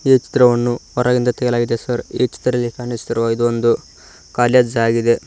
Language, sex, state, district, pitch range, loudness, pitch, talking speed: Kannada, male, Karnataka, Koppal, 120-125 Hz, -17 LUFS, 120 Hz, 135 wpm